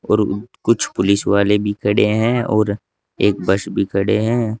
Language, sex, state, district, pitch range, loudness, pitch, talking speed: Hindi, male, Uttar Pradesh, Saharanpur, 100-110 Hz, -17 LUFS, 105 Hz, 170 wpm